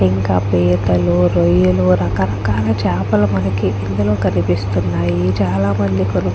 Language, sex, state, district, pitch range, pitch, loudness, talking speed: Telugu, female, Andhra Pradesh, Chittoor, 90-100 Hz, 95 Hz, -16 LUFS, 105 wpm